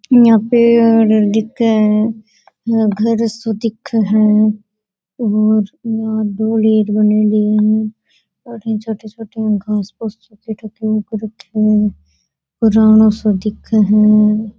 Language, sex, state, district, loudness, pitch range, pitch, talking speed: Rajasthani, female, Rajasthan, Nagaur, -14 LUFS, 210-225 Hz, 215 Hz, 50 wpm